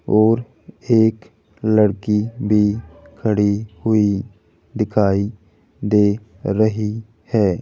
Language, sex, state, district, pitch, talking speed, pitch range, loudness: Hindi, male, Rajasthan, Jaipur, 105 Hz, 80 wpm, 100-110 Hz, -19 LUFS